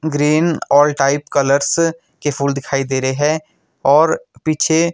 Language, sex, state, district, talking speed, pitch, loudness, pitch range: Hindi, male, Himachal Pradesh, Shimla, 145 wpm, 150 Hz, -16 LUFS, 140-160 Hz